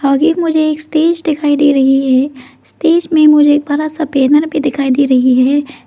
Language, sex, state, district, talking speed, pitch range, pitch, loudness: Hindi, female, Arunachal Pradesh, Lower Dibang Valley, 205 wpm, 275-310 Hz, 290 Hz, -12 LUFS